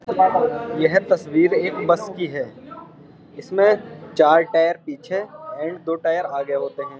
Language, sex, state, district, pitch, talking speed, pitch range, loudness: Hindi, male, Uttar Pradesh, Jyotiba Phule Nagar, 180 Hz, 135 wpm, 160-235 Hz, -20 LUFS